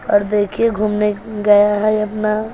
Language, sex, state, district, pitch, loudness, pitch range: Hindi, female, Bihar, West Champaran, 210 Hz, -16 LUFS, 210-215 Hz